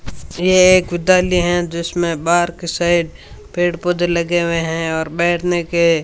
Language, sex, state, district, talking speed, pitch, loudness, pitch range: Hindi, female, Rajasthan, Bikaner, 170 wpm, 175 Hz, -16 LUFS, 170-175 Hz